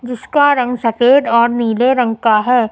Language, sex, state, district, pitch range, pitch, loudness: Hindi, female, Uttar Pradesh, Lucknow, 235-250 Hz, 245 Hz, -13 LUFS